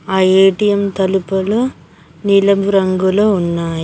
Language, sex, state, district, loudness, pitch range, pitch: Telugu, female, Telangana, Mahabubabad, -14 LUFS, 185-200 Hz, 195 Hz